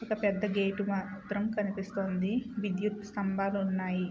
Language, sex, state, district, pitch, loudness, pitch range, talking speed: Telugu, female, Andhra Pradesh, Krishna, 200 Hz, -33 LUFS, 195-210 Hz, 100 wpm